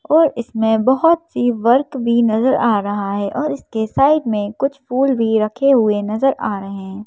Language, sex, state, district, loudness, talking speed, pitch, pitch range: Hindi, female, Madhya Pradesh, Bhopal, -17 LUFS, 195 wpm, 235 Hz, 215-275 Hz